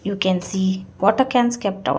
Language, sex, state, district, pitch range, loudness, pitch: English, female, Karnataka, Bangalore, 190-240 Hz, -20 LUFS, 195 Hz